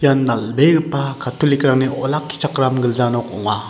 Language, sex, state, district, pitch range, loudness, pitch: Garo, male, Meghalaya, West Garo Hills, 120-145 Hz, -17 LUFS, 135 Hz